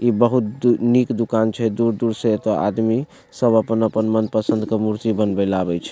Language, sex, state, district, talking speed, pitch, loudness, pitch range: Maithili, male, Bihar, Supaul, 190 wpm, 110 Hz, -19 LUFS, 110-115 Hz